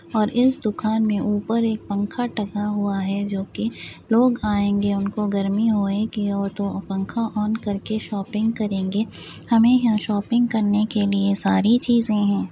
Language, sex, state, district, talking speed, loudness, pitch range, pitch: Hindi, female, Bihar, Saharsa, 160 wpm, -22 LUFS, 200-225 Hz, 210 Hz